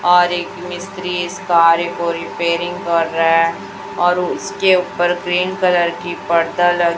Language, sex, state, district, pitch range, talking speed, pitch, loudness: Hindi, female, Chhattisgarh, Raipur, 170-180 Hz, 155 wpm, 175 Hz, -17 LUFS